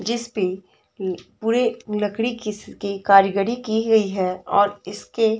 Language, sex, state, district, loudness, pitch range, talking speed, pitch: Hindi, female, Bihar, Samastipur, -21 LUFS, 195-225 Hz, 135 wpm, 210 Hz